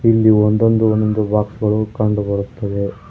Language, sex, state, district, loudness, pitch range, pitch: Kannada, male, Karnataka, Koppal, -16 LUFS, 105-110 Hz, 105 Hz